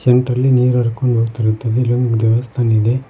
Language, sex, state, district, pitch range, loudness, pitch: Kannada, male, Karnataka, Koppal, 115-125 Hz, -15 LUFS, 120 Hz